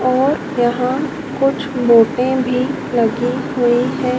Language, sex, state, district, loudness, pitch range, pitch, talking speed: Hindi, female, Madhya Pradesh, Dhar, -16 LUFS, 245-275 Hz, 255 Hz, 115 wpm